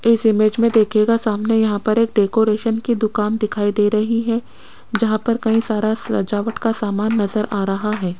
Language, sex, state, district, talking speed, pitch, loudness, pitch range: Hindi, female, Rajasthan, Jaipur, 190 wpm, 215 Hz, -18 LUFS, 210-225 Hz